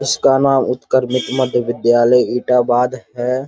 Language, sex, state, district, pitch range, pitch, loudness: Hindi, male, Bihar, Jamui, 120-130 Hz, 125 Hz, -15 LUFS